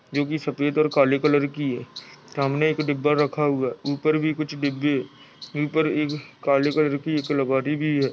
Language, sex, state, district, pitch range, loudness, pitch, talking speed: Hindi, male, Chhattisgarh, Raigarh, 140-150 Hz, -23 LUFS, 145 Hz, 190 wpm